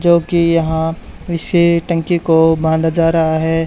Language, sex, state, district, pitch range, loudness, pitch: Hindi, male, Haryana, Charkhi Dadri, 160-170 Hz, -14 LUFS, 165 Hz